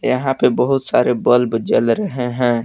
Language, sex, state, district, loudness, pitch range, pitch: Hindi, male, Jharkhand, Palamu, -16 LUFS, 120-130 Hz, 125 Hz